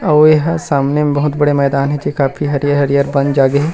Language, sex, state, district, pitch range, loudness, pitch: Chhattisgarhi, male, Chhattisgarh, Rajnandgaon, 140-150 Hz, -14 LUFS, 145 Hz